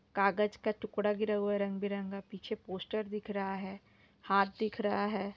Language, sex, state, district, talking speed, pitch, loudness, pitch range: Hindi, female, Jharkhand, Sahebganj, 190 wpm, 205 Hz, -35 LUFS, 195-210 Hz